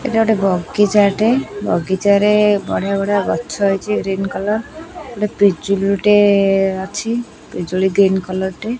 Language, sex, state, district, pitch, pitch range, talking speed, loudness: Odia, female, Odisha, Khordha, 200 Hz, 195-210 Hz, 135 wpm, -16 LUFS